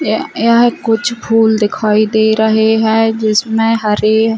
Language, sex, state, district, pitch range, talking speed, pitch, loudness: Hindi, female, Chhattisgarh, Bilaspur, 220-225 Hz, 135 wpm, 220 Hz, -12 LUFS